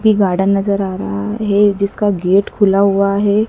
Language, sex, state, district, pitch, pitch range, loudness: Hindi, female, Madhya Pradesh, Dhar, 200 Hz, 195-205 Hz, -15 LUFS